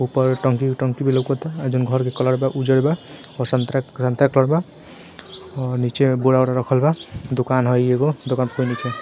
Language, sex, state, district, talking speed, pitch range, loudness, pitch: Bhojpuri, male, Bihar, Gopalganj, 250 wpm, 125-135 Hz, -20 LUFS, 130 Hz